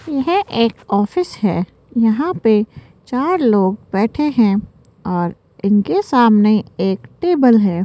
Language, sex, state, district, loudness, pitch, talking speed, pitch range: Hindi, female, Rajasthan, Jaipur, -16 LUFS, 220 Hz, 120 wpm, 200-270 Hz